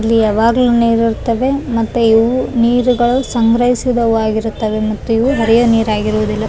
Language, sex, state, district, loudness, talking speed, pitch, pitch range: Kannada, female, Karnataka, Raichur, -13 LUFS, 110 wpm, 230 Hz, 220-245 Hz